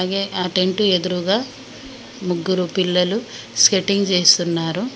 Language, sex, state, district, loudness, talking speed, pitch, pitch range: Telugu, female, Telangana, Mahabubabad, -18 LUFS, 95 wpm, 185 Hz, 180-200 Hz